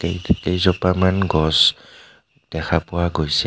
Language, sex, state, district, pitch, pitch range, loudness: Assamese, male, Assam, Kamrup Metropolitan, 85 Hz, 80-90 Hz, -18 LUFS